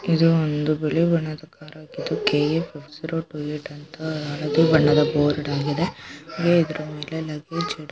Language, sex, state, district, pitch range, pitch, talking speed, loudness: Kannada, female, Karnataka, Chamarajanagar, 150-165 Hz, 155 Hz, 165 wpm, -23 LUFS